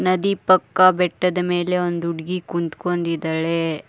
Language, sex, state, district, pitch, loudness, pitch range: Kannada, female, Karnataka, Koppal, 175 Hz, -20 LUFS, 165-185 Hz